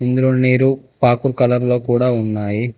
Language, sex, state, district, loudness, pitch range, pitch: Telugu, male, Telangana, Hyderabad, -16 LUFS, 120-130 Hz, 125 Hz